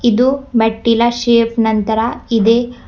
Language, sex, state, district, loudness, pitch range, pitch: Kannada, female, Karnataka, Bidar, -14 LUFS, 225-240 Hz, 230 Hz